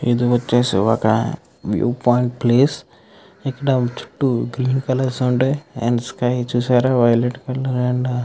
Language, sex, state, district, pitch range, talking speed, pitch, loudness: Telugu, male, Andhra Pradesh, Krishna, 120-130 Hz, 80 wpm, 125 Hz, -19 LUFS